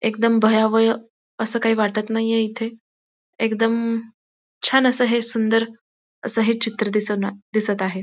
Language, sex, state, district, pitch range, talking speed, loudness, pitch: Marathi, female, Maharashtra, Dhule, 220-230 Hz, 135 wpm, -20 LUFS, 225 Hz